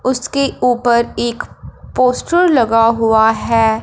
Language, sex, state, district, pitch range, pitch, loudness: Hindi, female, Punjab, Fazilka, 225-255 Hz, 240 Hz, -14 LUFS